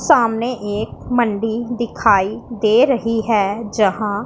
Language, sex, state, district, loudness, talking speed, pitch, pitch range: Hindi, female, Punjab, Pathankot, -18 LUFS, 115 wpm, 225 Hz, 210-240 Hz